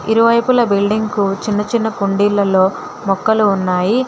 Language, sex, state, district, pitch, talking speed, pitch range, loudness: Telugu, female, Telangana, Hyderabad, 205 Hz, 120 wpm, 195-225 Hz, -15 LUFS